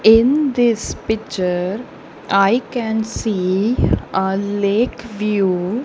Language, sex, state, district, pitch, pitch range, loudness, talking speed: English, female, Punjab, Kapurthala, 215 Hz, 195-235 Hz, -18 LUFS, 90 wpm